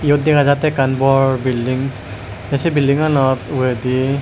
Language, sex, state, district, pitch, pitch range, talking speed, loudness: Chakma, male, Tripura, West Tripura, 135 Hz, 130-140 Hz, 155 wpm, -16 LUFS